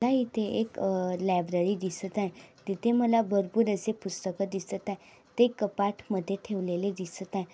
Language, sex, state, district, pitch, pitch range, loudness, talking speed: Marathi, female, Maharashtra, Dhule, 195 Hz, 185-215 Hz, -30 LUFS, 150 wpm